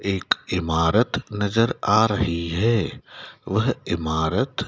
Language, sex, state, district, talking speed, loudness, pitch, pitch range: Hindi, male, Madhya Pradesh, Dhar, 100 wpm, -22 LUFS, 100 Hz, 85-115 Hz